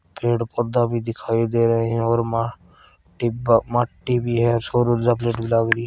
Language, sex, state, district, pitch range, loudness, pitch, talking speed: Marwari, male, Rajasthan, Churu, 115-120 Hz, -21 LUFS, 115 Hz, 185 wpm